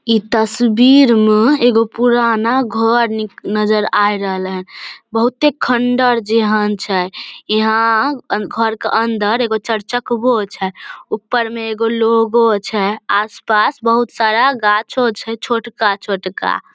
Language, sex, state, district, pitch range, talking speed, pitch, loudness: Maithili, female, Bihar, Samastipur, 215-235 Hz, 125 wpm, 225 Hz, -15 LUFS